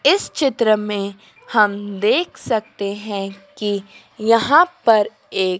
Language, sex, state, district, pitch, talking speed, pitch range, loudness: Hindi, female, Madhya Pradesh, Dhar, 210 Hz, 120 wpm, 200-230 Hz, -19 LUFS